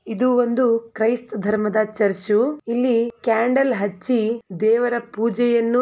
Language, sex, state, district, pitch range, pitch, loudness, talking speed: Kannada, female, Karnataka, Mysore, 215-245 Hz, 230 Hz, -20 LUFS, 115 wpm